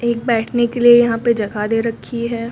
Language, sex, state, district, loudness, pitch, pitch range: Hindi, female, Uttar Pradesh, Lucknow, -16 LUFS, 235 Hz, 230-240 Hz